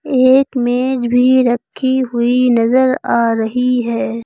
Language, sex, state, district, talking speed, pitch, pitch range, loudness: Hindi, female, Uttar Pradesh, Lucknow, 125 wpm, 250 Hz, 235-260 Hz, -14 LUFS